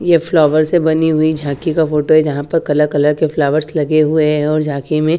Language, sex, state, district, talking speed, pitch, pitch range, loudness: Hindi, female, Bihar, Katihar, 245 wpm, 155 Hz, 150-160 Hz, -14 LUFS